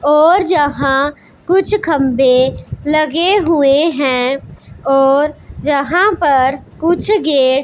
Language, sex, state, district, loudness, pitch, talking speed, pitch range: Hindi, female, Punjab, Pathankot, -13 LUFS, 290 Hz, 100 wpm, 275-335 Hz